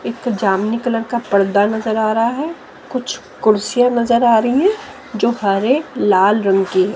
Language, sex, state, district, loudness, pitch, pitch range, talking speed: Hindi, female, Haryana, Jhajjar, -16 LUFS, 225 Hz, 205-245 Hz, 180 wpm